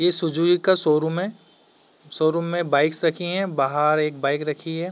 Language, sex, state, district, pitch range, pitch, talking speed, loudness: Hindi, male, Uttar Pradesh, Varanasi, 150-175 Hz, 165 Hz, 195 wpm, -20 LUFS